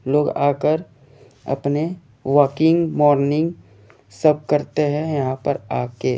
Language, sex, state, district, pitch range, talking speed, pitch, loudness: Hindi, male, Jharkhand, Jamtara, 135-155 Hz, 105 wpm, 145 Hz, -20 LUFS